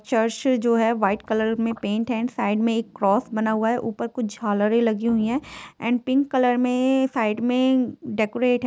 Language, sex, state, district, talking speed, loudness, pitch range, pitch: Hindi, female, Jharkhand, Sahebganj, 210 wpm, -22 LUFS, 220-250 Hz, 230 Hz